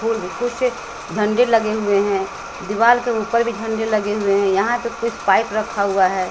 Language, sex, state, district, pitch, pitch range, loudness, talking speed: Hindi, female, Bihar, West Champaran, 220 Hz, 200-230 Hz, -19 LUFS, 190 wpm